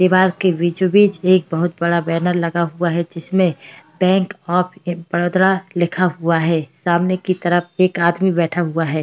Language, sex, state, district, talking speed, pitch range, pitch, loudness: Hindi, female, Uttar Pradesh, Hamirpur, 165 wpm, 170-185 Hz, 175 Hz, -17 LUFS